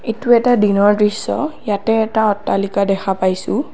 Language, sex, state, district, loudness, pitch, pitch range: Assamese, female, Assam, Kamrup Metropolitan, -16 LUFS, 210 Hz, 200-225 Hz